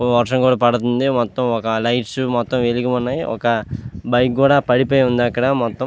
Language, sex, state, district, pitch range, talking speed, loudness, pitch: Telugu, male, Andhra Pradesh, Visakhapatnam, 120-130 Hz, 175 wpm, -17 LUFS, 125 Hz